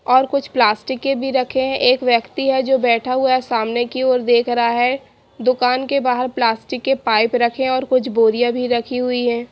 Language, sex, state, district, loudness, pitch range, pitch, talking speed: Hindi, female, Haryana, Charkhi Dadri, -17 LUFS, 240-260 Hz, 250 Hz, 215 wpm